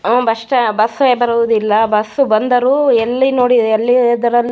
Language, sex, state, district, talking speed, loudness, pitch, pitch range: Kannada, female, Karnataka, Bellary, 145 wpm, -13 LUFS, 240 Hz, 225-250 Hz